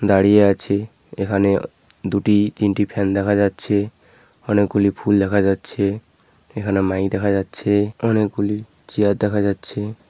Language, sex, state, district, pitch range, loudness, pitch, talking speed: Bengali, male, West Bengal, Paschim Medinipur, 100-105 Hz, -19 LUFS, 100 Hz, 125 wpm